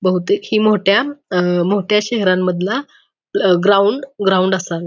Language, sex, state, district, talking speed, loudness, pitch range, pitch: Marathi, female, Maharashtra, Pune, 110 wpm, -16 LUFS, 185-215 Hz, 200 Hz